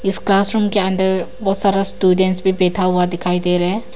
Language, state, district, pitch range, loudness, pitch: Hindi, Arunachal Pradesh, Papum Pare, 185-195 Hz, -16 LUFS, 190 Hz